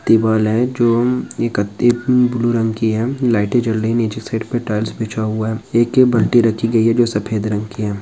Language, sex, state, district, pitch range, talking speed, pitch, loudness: Hindi, male, Bihar, Jamui, 110-120 Hz, 215 wpm, 115 Hz, -17 LUFS